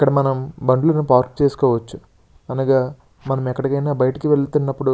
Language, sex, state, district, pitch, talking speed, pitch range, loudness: Telugu, male, Andhra Pradesh, Srikakulam, 135 Hz, 135 wpm, 130-140 Hz, -19 LUFS